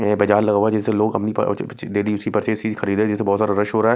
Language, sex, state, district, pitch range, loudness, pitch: Hindi, male, Punjab, Kapurthala, 105-110 Hz, -20 LUFS, 105 Hz